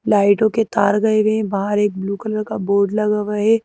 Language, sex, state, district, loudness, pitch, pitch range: Hindi, female, Madhya Pradesh, Bhopal, -18 LUFS, 210 Hz, 200-215 Hz